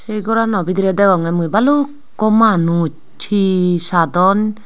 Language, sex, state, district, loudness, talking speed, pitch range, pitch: Chakma, female, Tripura, Unakoti, -15 LUFS, 115 wpm, 175-220 Hz, 195 Hz